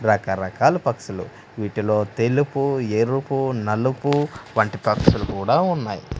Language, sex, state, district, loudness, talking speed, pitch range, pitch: Telugu, male, Andhra Pradesh, Manyam, -21 LUFS, 95 wpm, 105-135 Hz, 115 Hz